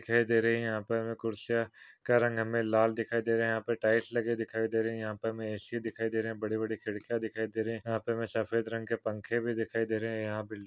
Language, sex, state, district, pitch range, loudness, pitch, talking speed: Hindi, male, Maharashtra, Pune, 110-115 Hz, -32 LUFS, 115 Hz, 305 wpm